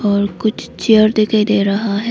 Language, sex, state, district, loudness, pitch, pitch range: Hindi, female, Arunachal Pradesh, Lower Dibang Valley, -15 LUFS, 210 Hz, 200-215 Hz